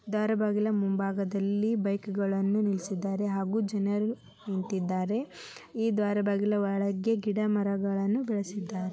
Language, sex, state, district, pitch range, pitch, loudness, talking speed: Kannada, male, Karnataka, Dharwad, 195-210 Hz, 200 Hz, -29 LUFS, 80 wpm